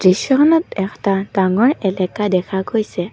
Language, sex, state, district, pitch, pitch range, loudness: Assamese, female, Assam, Kamrup Metropolitan, 195 Hz, 190-220 Hz, -17 LUFS